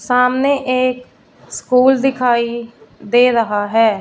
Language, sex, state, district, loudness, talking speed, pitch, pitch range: Hindi, female, Punjab, Fazilka, -15 LUFS, 105 wpm, 250 Hz, 230-255 Hz